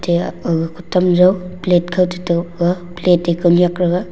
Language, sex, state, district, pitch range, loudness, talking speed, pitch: Wancho, male, Arunachal Pradesh, Longding, 175-180 Hz, -16 LUFS, 190 wpm, 175 Hz